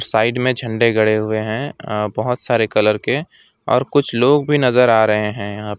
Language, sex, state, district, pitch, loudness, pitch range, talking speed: Hindi, male, West Bengal, Alipurduar, 110 Hz, -17 LUFS, 105-125 Hz, 220 wpm